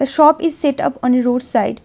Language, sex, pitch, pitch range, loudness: English, female, 270 Hz, 250-305 Hz, -16 LUFS